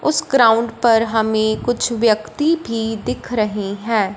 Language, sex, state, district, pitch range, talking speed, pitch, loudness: Hindi, female, Punjab, Fazilka, 215-240 Hz, 145 wpm, 225 Hz, -17 LUFS